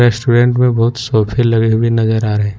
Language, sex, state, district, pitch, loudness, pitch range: Hindi, male, Jharkhand, Ranchi, 115 Hz, -13 LUFS, 110-120 Hz